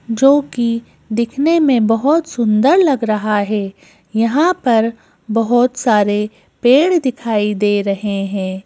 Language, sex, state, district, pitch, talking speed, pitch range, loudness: Hindi, female, Madhya Pradesh, Bhopal, 230 Hz, 125 wpm, 210-260 Hz, -15 LUFS